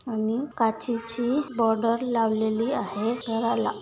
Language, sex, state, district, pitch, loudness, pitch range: Marathi, female, Maharashtra, Nagpur, 230 Hz, -25 LUFS, 225-240 Hz